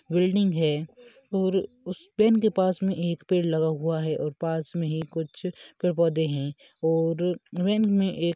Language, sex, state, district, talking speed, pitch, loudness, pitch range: Hindi, male, Jharkhand, Sahebganj, 180 wpm, 175 Hz, -26 LUFS, 160-190 Hz